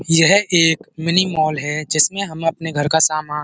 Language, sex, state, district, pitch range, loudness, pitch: Hindi, male, Uttar Pradesh, Budaun, 155-170 Hz, -16 LUFS, 160 Hz